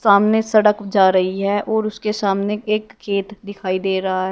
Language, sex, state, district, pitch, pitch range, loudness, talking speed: Hindi, female, Uttar Pradesh, Shamli, 205 Hz, 195-215 Hz, -18 LUFS, 195 wpm